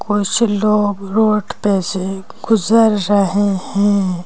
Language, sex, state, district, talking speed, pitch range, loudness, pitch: Hindi, female, Madhya Pradesh, Bhopal, 115 wpm, 195-215 Hz, -15 LUFS, 205 Hz